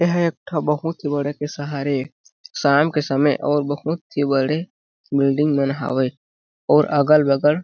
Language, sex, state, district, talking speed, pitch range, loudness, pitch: Chhattisgarhi, male, Chhattisgarh, Jashpur, 190 wpm, 140-150 Hz, -20 LUFS, 145 Hz